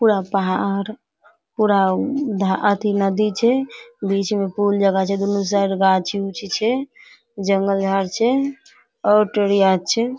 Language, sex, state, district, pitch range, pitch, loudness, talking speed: Maithili, female, Bihar, Supaul, 195-230 Hz, 200 Hz, -19 LUFS, 130 wpm